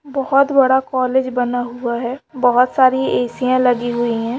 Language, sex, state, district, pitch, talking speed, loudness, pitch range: Hindi, female, West Bengal, Paschim Medinipur, 255 Hz, 175 wpm, -17 LUFS, 245-265 Hz